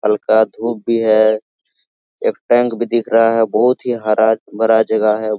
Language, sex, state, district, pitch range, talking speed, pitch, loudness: Hindi, male, Jharkhand, Sahebganj, 110-115 Hz, 165 wpm, 110 Hz, -15 LUFS